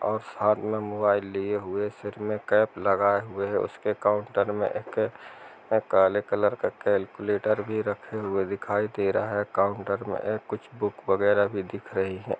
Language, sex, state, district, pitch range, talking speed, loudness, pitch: Hindi, male, Bihar, East Champaran, 100-105 Hz, 170 wpm, -27 LUFS, 105 Hz